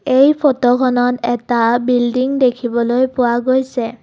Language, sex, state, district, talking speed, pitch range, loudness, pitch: Assamese, female, Assam, Kamrup Metropolitan, 105 wpm, 240-260 Hz, -15 LUFS, 245 Hz